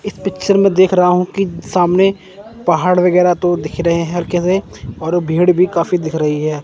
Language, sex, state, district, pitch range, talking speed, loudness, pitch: Hindi, male, Chandigarh, Chandigarh, 170-185 Hz, 210 wpm, -14 LUFS, 180 Hz